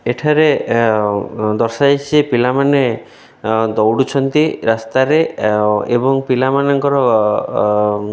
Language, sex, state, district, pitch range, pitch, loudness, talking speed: Odia, male, Odisha, Khordha, 110-140 Hz, 120 Hz, -14 LUFS, 110 wpm